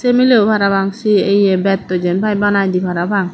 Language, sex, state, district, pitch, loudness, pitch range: Chakma, female, Tripura, Dhalai, 200 Hz, -14 LUFS, 185-210 Hz